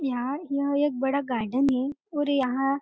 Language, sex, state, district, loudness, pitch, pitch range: Hindi, female, Maharashtra, Nagpur, -26 LUFS, 275 Hz, 260-285 Hz